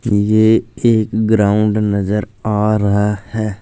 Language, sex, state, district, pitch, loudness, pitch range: Hindi, male, Punjab, Fazilka, 105 Hz, -15 LUFS, 105-110 Hz